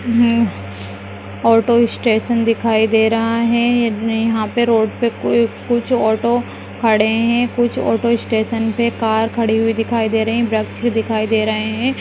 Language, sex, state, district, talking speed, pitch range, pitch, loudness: Hindi, female, Maharashtra, Solapur, 150 wpm, 220-235 Hz, 225 Hz, -16 LUFS